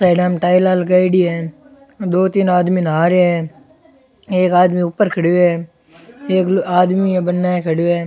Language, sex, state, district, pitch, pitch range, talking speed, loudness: Rajasthani, male, Rajasthan, Churu, 180 Hz, 175-185 Hz, 165 wpm, -15 LUFS